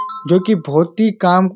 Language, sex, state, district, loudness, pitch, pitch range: Hindi, male, Uttarakhand, Uttarkashi, -15 LUFS, 185 Hz, 180-220 Hz